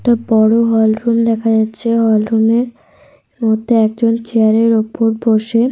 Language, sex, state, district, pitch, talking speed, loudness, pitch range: Bengali, female, Jharkhand, Sahebganj, 225 Hz, 125 wpm, -13 LUFS, 220-230 Hz